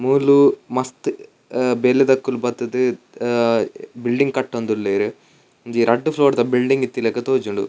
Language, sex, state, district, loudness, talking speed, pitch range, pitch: Tulu, male, Karnataka, Dakshina Kannada, -19 LUFS, 110 wpm, 120-135 Hz, 125 Hz